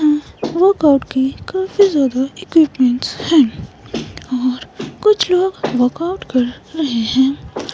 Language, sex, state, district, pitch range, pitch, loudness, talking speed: Hindi, female, Himachal Pradesh, Shimla, 255-360 Hz, 295 Hz, -16 LUFS, 100 wpm